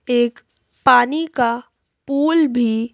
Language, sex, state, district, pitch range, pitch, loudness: Hindi, female, Madhya Pradesh, Bhopal, 240-285 Hz, 245 Hz, -17 LUFS